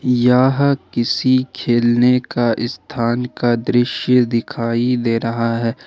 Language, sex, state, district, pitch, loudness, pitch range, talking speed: Hindi, male, Jharkhand, Ranchi, 120 Hz, -17 LUFS, 115-125 Hz, 110 wpm